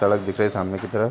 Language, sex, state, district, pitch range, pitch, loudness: Hindi, male, Chhattisgarh, Raigarh, 95-105 Hz, 100 Hz, -23 LUFS